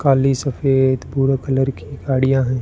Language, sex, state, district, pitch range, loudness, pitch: Hindi, male, Rajasthan, Bikaner, 130-135 Hz, -18 LUFS, 135 Hz